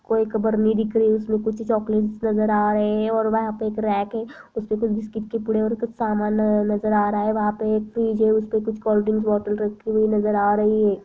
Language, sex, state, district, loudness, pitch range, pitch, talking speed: Hindi, female, Maharashtra, Aurangabad, -22 LUFS, 210-220 Hz, 215 Hz, 255 wpm